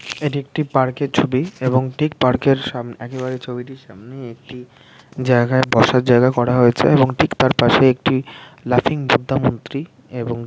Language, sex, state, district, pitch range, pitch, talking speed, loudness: Bengali, male, West Bengal, North 24 Parganas, 125-135 Hz, 130 Hz, 175 wpm, -17 LUFS